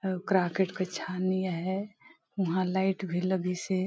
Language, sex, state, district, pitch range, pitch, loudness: Hindi, female, Chhattisgarh, Balrampur, 185-190 Hz, 185 Hz, -30 LUFS